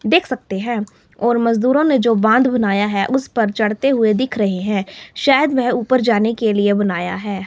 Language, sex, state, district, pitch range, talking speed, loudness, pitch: Hindi, female, Himachal Pradesh, Shimla, 205-255 Hz, 200 wpm, -17 LUFS, 230 Hz